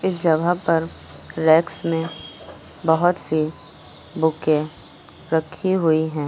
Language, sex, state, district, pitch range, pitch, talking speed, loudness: Hindi, female, Uttar Pradesh, Lucknow, 160-170 Hz, 160 Hz, 105 wpm, -20 LUFS